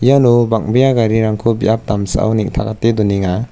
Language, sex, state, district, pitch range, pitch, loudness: Garo, male, Meghalaya, South Garo Hills, 105-120 Hz, 110 Hz, -14 LUFS